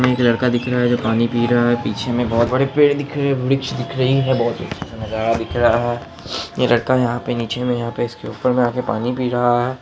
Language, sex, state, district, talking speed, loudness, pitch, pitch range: Hindi, male, Bihar, Araria, 295 wpm, -19 LUFS, 120 Hz, 120-125 Hz